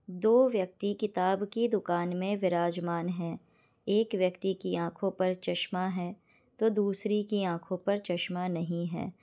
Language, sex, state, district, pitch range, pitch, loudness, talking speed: Hindi, female, Bihar, Kishanganj, 175-205 Hz, 185 Hz, -31 LUFS, 150 wpm